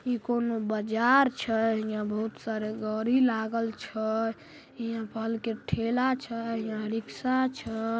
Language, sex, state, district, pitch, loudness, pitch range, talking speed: Maithili, female, Bihar, Samastipur, 225 Hz, -29 LUFS, 220-235 Hz, 135 wpm